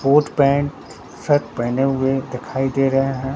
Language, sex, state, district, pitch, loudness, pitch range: Hindi, male, Bihar, Katihar, 135 Hz, -19 LUFS, 130-140 Hz